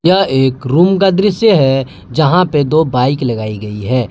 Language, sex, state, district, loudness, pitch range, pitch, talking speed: Hindi, male, Jharkhand, Palamu, -13 LUFS, 125-180 Hz, 135 Hz, 190 wpm